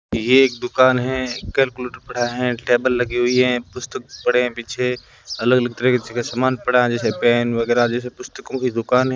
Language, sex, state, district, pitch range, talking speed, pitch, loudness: Hindi, male, Rajasthan, Bikaner, 120-125 Hz, 195 wpm, 125 Hz, -19 LUFS